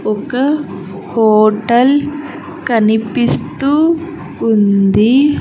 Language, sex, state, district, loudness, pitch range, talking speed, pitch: Telugu, female, Andhra Pradesh, Sri Satya Sai, -13 LUFS, 215-295 Hz, 45 wpm, 245 Hz